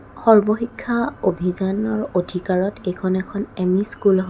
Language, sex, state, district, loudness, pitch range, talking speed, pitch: Assamese, female, Assam, Kamrup Metropolitan, -20 LUFS, 185-215 Hz, 110 wpm, 190 Hz